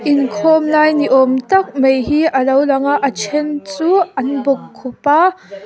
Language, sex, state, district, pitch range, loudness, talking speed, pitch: Mizo, female, Mizoram, Aizawl, 265-305 Hz, -14 LUFS, 180 wpm, 285 Hz